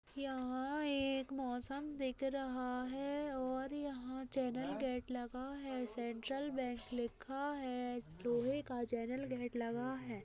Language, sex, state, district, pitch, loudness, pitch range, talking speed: Hindi, female, Uttar Pradesh, Budaun, 260 Hz, -42 LUFS, 245-275 Hz, 125 wpm